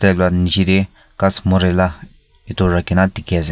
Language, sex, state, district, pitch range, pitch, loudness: Nagamese, male, Nagaland, Kohima, 90-95 Hz, 95 Hz, -16 LUFS